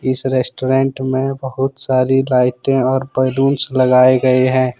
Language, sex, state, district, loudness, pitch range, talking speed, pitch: Hindi, male, Jharkhand, Ranchi, -15 LUFS, 130-135 Hz, 140 wpm, 130 Hz